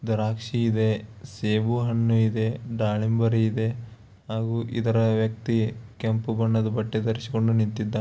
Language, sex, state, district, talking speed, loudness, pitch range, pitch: Kannada, male, Karnataka, Bellary, 95 wpm, -25 LUFS, 110-115 Hz, 110 Hz